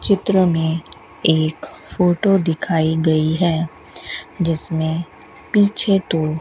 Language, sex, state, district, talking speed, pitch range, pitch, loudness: Hindi, female, Rajasthan, Bikaner, 105 wpm, 160-190 Hz, 165 Hz, -18 LUFS